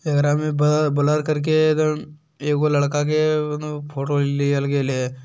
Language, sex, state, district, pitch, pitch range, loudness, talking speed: Hindi, male, Bihar, Jamui, 150 Hz, 145-155 Hz, -20 LUFS, 150 wpm